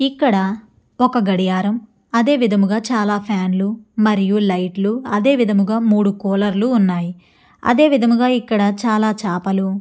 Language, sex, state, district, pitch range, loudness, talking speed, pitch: Telugu, female, Andhra Pradesh, Chittoor, 195-235 Hz, -17 LUFS, 135 wpm, 210 Hz